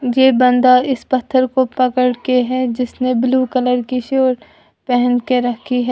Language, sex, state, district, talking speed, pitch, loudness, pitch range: Hindi, female, Uttar Pradesh, Lalitpur, 160 wpm, 255 Hz, -15 LUFS, 245-255 Hz